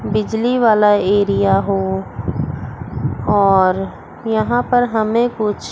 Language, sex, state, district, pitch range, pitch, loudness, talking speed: Hindi, female, Chandigarh, Chandigarh, 195-225 Hz, 210 Hz, -16 LUFS, 95 wpm